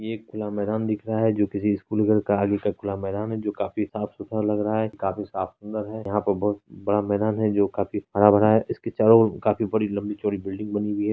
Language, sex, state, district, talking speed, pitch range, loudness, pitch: Hindi, female, Bihar, Araria, 255 wpm, 100-110 Hz, -24 LUFS, 105 Hz